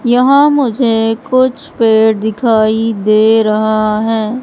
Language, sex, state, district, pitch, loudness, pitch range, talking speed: Hindi, female, Madhya Pradesh, Katni, 225 Hz, -11 LUFS, 220-250 Hz, 110 wpm